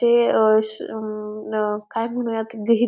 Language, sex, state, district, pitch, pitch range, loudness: Marathi, female, Maharashtra, Pune, 220 Hz, 215-230 Hz, -22 LUFS